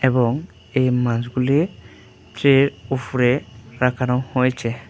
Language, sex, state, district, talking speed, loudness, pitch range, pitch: Bengali, male, Tripura, West Tripura, 85 wpm, -20 LUFS, 120-130 Hz, 125 Hz